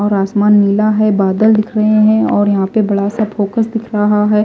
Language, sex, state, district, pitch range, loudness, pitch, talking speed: Hindi, female, Chandigarh, Chandigarh, 205-215 Hz, -12 LUFS, 210 Hz, 230 wpm